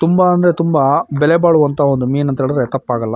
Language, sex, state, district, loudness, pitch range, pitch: Kannada, male, Karnataka, Shimoga, -14 LUFS, 135-165 Hz, 145 Hz